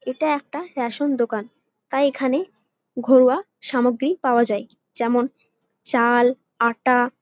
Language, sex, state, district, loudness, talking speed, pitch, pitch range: Bengali, female, West Bengal, Jalpaiguri, -21 LUFS, 115 wpm, 255 Hz, 240-280 Hz